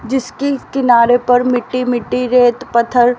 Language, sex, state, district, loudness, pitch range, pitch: Hindi, female, Haryana, Rohtak, -14 LUFS, 240-255 Hz, 245 Hz